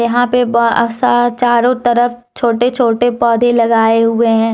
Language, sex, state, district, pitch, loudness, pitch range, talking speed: Hindi, female, Jharkhand, Deoghar, 235 Hz, -12 LUFS, 230-245 Hz, 160 wpm